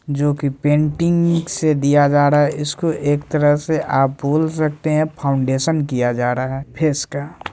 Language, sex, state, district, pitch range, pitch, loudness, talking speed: Hindi, male, Bihar, Begusarai, 140-155 Hz, 145 Hz, -18 LUFS, 185 wpm